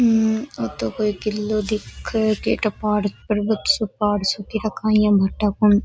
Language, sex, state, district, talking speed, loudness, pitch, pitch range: Rajasthani, female, Rajasthan, Nagaur, 195 wpm, -21 LUFS, 210 Hz, 205-220 Hz